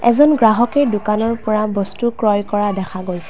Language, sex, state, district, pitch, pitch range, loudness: Assamese, female, Assam, Kamrup Metropolitan, 215 Hz, 205-235 Hz, -16 LUFS